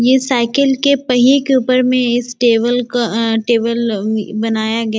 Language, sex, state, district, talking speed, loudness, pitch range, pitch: Hindi, female, Bihar, Bhagalpur, 190 wpm, -14 LUFS, 225-255 Hz, 240 Hz